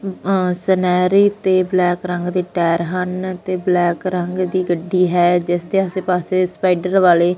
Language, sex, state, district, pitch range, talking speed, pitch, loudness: Punjabi, female, Punjab, Fazilka, 175-185 Hz, 160 wpm, 180 Hz, -17 LUFS